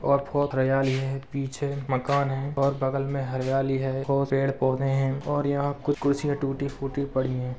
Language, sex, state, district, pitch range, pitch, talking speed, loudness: Hindi, male, Bihar, Madhepura, 135-140 Hz, 135 Hz, 175 wpm, -26 LUFS